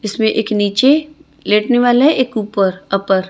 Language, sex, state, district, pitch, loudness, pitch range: Hindi, female, Chhattisgarh, Raipur, 220 Hz, -14 LUFS, 200-255 Hz